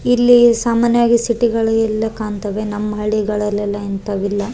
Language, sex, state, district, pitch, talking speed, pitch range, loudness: Kannada, female, Karnataka, Raichur, 215 Hz, 130 wpm, 205-235 Hz, -16 LUFS